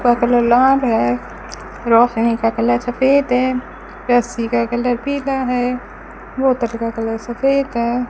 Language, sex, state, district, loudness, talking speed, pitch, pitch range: Hindi, female, Rajasthan, Bikaner, -17 LUFS, 120 wpm, 240 Hz, 235-255 Hz